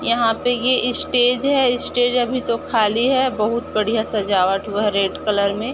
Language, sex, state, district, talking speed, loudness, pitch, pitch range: Hindi, female, Chhattisgarh, Bilaspur, 200 wpm, -18 LUFS, 235 Hz, 210-250 Hz